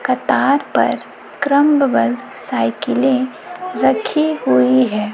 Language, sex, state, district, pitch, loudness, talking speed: Hindi, female, Chhattisgarh, Raipur, 265 Hz, -16 LUFS, 80 wpm